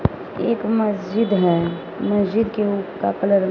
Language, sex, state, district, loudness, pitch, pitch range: Hindi, female, Punjab, Fazilka, -21 LUFS, 200 Hz, 190-215 Hz